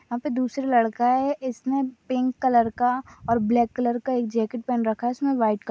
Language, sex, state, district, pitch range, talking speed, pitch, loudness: Hindi, female, Maharashtra, Sindhudurg, 235-260 Hz, 210 wpm, 245 Hz, -24 LUFS